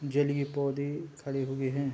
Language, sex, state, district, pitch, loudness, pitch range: Hindi, male, Uttar Pradesh, Gorakhpur, 140 Hz, -32 LUFS, 140-145 Hz